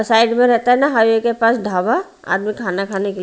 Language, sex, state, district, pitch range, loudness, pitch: Hindi, female, Haryana, Rohtak, 200-240 Hz, -16 LUFS, 225 Hz